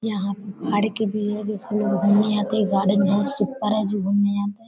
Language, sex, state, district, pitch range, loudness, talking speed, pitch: Hindi, female, Bihar, Darbhanga, 200-215 Hz, -22 LUFS, 190 wpm, 205 Hz